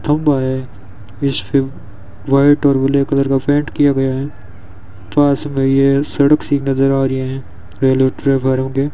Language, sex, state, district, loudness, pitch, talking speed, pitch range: Hindi, male, Rajasthan, Bikaner, -15 LUFS, 135 Hz, 155 wpm, 130-140 Hz